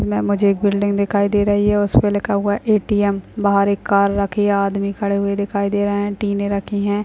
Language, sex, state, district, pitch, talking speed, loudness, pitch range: Hindi, female, Bihar, Purnia, 200 Hz, 240 wpm, -18 LUFS, 200-205 Hz